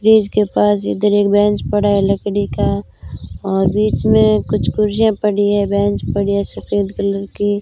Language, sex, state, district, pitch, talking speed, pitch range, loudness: Hindi, female, Rajasthan, Bikaner, 200 Hz, 180 wpm, 155-205 Hz, -16 LUFS